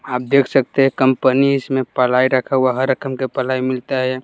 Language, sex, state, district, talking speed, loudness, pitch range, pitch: Hindi, male, Bihar, West Champaran, 225 wpm, -17 LUFS, 130-135 Hz, 130 Hz